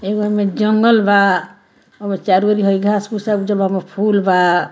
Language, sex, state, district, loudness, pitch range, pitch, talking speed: Bhojpuri, female, Bihar, Muzaffarpur, -15 LUFS, 195-210 Hz, 205 Hz, 180 wpm